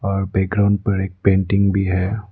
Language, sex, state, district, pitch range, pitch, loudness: Hindi, male, Arunachal Pradesh, Lower Dibang Valley, 95-100 Hz, 100 Hz, -18 LUFS